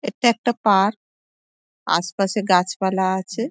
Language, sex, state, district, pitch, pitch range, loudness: Bengali, female, West Bengal, Dakshin Dinajpur, 195 Hz, 190-225 Hz, -20 LUFS